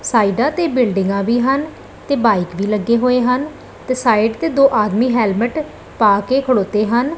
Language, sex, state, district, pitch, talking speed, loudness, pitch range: Punjabi, female, Punjab, Pathankot, 240 Hz, 175 wpm, -16 LUFS, 210-265 Hz